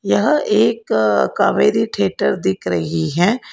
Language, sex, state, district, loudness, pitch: Hindi, female, Karnataka, Bangalore, -17 LUFS, 175 Hz